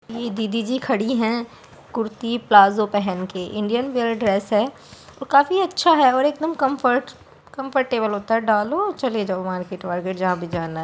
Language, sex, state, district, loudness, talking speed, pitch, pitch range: Hindi, female, Bihar, Supaul, -21 LUFS, 185 wpm, 225 Hz, 200-260 Hz